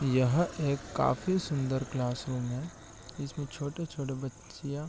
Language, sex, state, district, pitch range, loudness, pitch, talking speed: Hindi, male, Chhattisgarh, Raigarh, 130-145 Hz, -32 LUFS, 140 Hz, 110 wpm